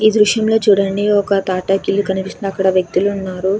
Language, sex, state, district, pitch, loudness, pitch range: Telugu, female, Andhra Pradesh, Krishna, 195 Hz, -16 LUFS, 190-205 Hz